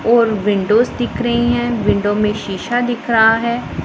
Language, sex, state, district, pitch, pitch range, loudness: Hindi, female, Punjab, Pathankot, 230 Hz, 210-240 Hz, -16 LUFS